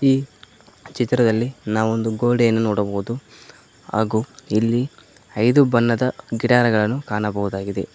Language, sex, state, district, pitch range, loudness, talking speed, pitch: Kannada, male, Karnataka, Koppal, 105-125 Hz, -20 LUFS, 90 wpm, 115 Hz